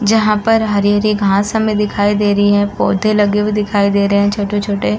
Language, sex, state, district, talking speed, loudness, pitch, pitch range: Hindi, female, Uttar Pradesh, Muzaffarnagar, 205 wpm, -14 LUFS, 205 Hz, 205-210 Hz